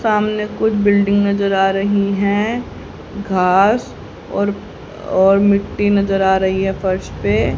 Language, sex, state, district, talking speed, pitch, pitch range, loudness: Hindi, female, Haryana, Rohtak, 135 wpm, 200 Hz, 190-205 Hz, -16 LUFS